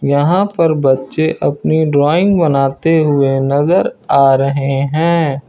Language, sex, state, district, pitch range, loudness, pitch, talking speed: Hindi, male, Uttar Pradesh, Lucknow, 135-165 Hz, -13 LUFS, 145 Hz, 120 wpm